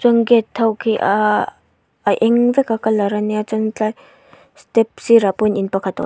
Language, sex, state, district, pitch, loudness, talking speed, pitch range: Mizo, female, Mizoram, Aizawl, 220 Hz, -17 LUFS, 210 wpm, 210-230 Hz